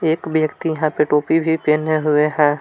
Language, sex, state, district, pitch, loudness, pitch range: Hindi, male, Jharkhand, Palamu, 155 Hz, -18 LUFS, 150-160 Hz